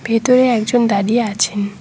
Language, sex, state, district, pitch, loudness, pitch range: Bengali, female, West Bengal, Cooch Behar, 225 Hz, -15 LUFS, 205-240 Hz